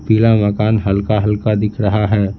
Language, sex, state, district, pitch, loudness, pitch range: Hindi, male, Bihar, Patna, 105 Hz, -15 LUFS, 105-110 Hz